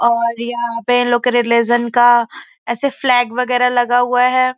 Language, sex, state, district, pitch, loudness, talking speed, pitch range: Hindi, female, Uttar Pradesh, Gorakhpur, 240 Hz, -15 LUFS, 185 wpm, 235-250 Hz